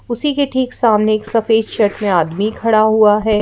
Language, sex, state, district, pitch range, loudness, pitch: Hindi, female, Madhya Pradesh, Bhopal, 210-230 Hz, -15 LUFS, 220 Hz